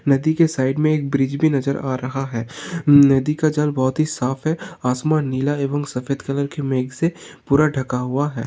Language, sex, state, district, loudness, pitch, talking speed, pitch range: Hindi, male, Uttar Pradesh, Hamirpur, -20 LUFS, 140 Hz, 215 wpm, 130-155 Hz